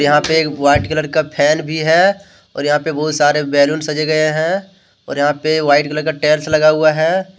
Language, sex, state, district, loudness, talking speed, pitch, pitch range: Hindi, male, Jharkhand, Deoghar, -15 LUFS, 225 wpm, 155 Hz, 150-160 Hz